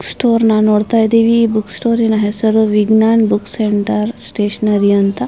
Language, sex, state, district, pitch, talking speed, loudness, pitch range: Kannada, female, Karnataka, Mysore, 215 Hz, 150 wpm, -13 LUFS, 210-225 Hz